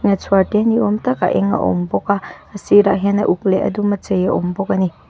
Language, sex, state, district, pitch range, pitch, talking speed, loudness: Mizo, female, Mizoram, Aizawl, 185-205 Hz, 200 Hz, 315 wpm, -17 LUFS